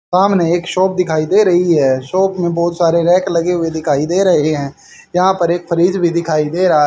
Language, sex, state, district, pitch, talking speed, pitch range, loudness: Hindi, male, Haryana, Jhajjar, 175 Hz, 225 wpm, 160-180 Hz, -14 LUFS